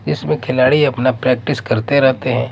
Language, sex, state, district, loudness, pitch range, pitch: Hindi, male, Maharashtra, Mumbai Suburban, -15 LUFS, 125-140 Hz, 130 Hz